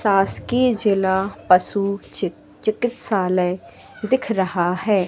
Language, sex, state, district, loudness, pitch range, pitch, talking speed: Hindi, female, Madhya Pradesh, Katni, -20 LUFS, 185-215 Hz, 195 Hz, 95 wpm